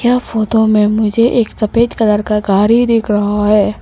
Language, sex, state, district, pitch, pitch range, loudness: Hindi, female, Arunachal Pradesh, Papum Pare, 215 Hz, 210-235 Hz, -13 LUFS